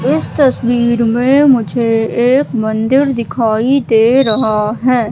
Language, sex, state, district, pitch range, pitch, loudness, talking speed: Hindi, female, Madhya Pradesh, Katni, 225-260 Hz, 235 Hz, -12 LUFS, 115 wpm